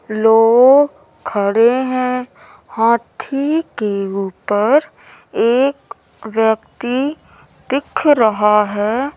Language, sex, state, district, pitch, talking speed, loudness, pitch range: Hindi, female, Madhya Pradesh, Umaria, 235 Hz, 70 wpm, -15 LUFS, 215-270 Hz